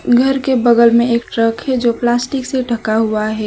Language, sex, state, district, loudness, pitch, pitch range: Hindi, female, West Bengal, Alipurduar, -14 LUFS, 235 Hz, 230-255 Hz